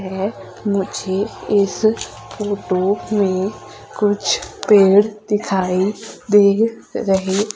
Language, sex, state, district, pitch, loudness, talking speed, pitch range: Hindi, female, Madhya Pradesh, Umaria, 200 Hz, -18 LUFS, 80 wpm, 195-210 Hz